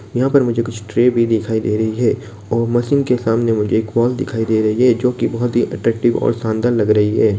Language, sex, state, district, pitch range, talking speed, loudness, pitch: Hindi, male, Bihar, Begusarai, 110-120 Hz, 250 wpm, -16 LUFS, 115 Hz